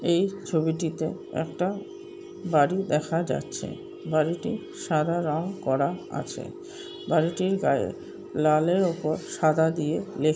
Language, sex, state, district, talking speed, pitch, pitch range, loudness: Bengali, female, West Bengal, Paschim Medinipur, 105 wpm, 170 Hz, 155-190 Hz, -26 LUFS